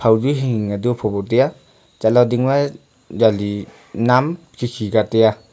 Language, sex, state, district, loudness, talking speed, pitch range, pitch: Wancho, male, Arunachal Pradesh, Longding, -18 LUFS, 175 wpm, 110-125 Hz, 115 Hz